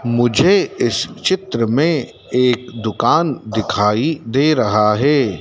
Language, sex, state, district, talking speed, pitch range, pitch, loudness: Hindi, male, Madhya Pradesh, Dhar, 110 wpm, 110-150 Hz, 125 Hz, -16 LUFS